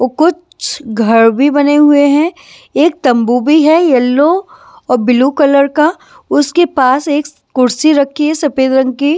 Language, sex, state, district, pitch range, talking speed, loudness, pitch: Hindi, female, Maharashtra, Washim, 260-310 Hz, 165 wpm, -11 LUFS, 285 Hz